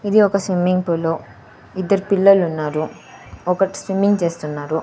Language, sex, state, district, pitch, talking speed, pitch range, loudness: Telugu, female, Andhra Pradesh, Sri Satya Sai, 180 Hz, 110 wpm, 155-195 Hz, -18 LUFS